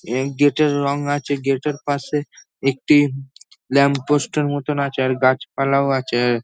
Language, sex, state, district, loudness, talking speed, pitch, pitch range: Bengali, male, West Bengal, North 24 Parganas, -19 LUFS, 185 wpm, 140 Hz, 135-145 Hz